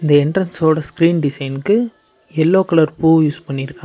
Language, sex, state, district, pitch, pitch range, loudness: Tamil, male, Tamil Nadu, Namakkal, 160 Hz, 145-170 Hz, -16 LUFS